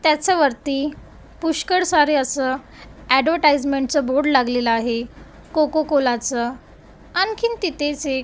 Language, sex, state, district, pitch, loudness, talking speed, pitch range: Marathi, female, Maharashtra, Gondia, 285 Hz, -20 LUFS, 100 wpm, 260-310 Hz